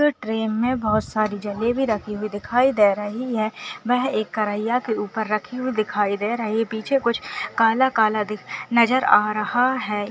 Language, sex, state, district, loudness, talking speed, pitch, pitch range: Hindi, female, Chhattisgarh, Jashpur, -22 LUFS, 190 wpm, 220 Hz, 210-245 Hz